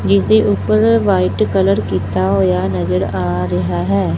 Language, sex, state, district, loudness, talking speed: Punjabi, female, Punjab, Fazilka, -15 LUFS, 145 wpm